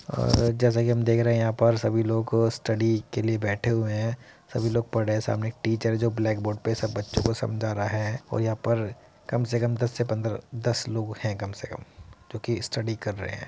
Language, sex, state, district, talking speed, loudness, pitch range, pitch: Hindi, male, Uttar Pradesh, Muzaffarnagar, 255 wpm, -26 LUFS, 110-115 Hz, 115 Hz